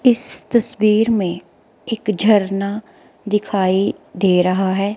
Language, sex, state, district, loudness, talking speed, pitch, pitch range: Hindi, female, Himachal Pradesh, Shimla, -17 LUFS, 110 wpm, 205 Hz, 195-220 Hz